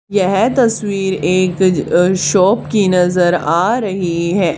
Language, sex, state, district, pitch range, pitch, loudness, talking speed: Hindi, female, Haryana, Charkhi Dadri, 180-200 Hz, 185 Hz, -14 LUFS, 130 wpm